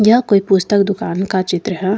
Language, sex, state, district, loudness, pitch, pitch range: Hindi, female, Jharkhand, Deoghar, -15 LUFS, 195 Hz, 185-205 Hz